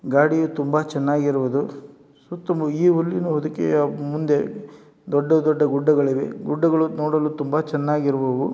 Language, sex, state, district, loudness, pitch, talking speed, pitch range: Kannada, male, Karnataka, Dharwad, -21 LUFS, 150 Hz, 105 wpm, 145-155 Hz